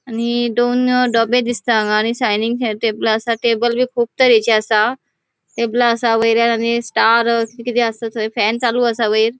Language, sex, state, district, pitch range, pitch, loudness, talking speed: Konkani, female, Goa, North and South Goa, 225-240 Hz, 235 Hz, -16 LUFS, 170 wpm